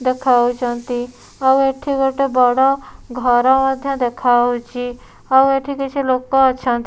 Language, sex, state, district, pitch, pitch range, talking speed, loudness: Odia, female, Odisha, Nuapada, 255 Hz, 245-270 Hz, 120 wpm, -16 LUFS